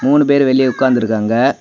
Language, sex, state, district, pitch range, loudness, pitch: Tamil, male, Tamil Nadu, Kanyakumari, 120-140 Hz, -13 LUFS, 130 Hz